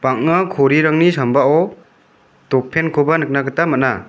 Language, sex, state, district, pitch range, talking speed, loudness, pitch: Garo, male, Meghalaya, West Garo Hills, 130-160 Hz, 130 wpm, -15 LUFS, 145 Hz